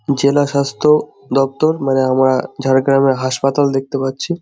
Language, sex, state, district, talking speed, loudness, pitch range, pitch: Bengali, male, West Bengal, Jhargram, 120 wpm, -15 LUFS, 135-140 Hz, 135 Hz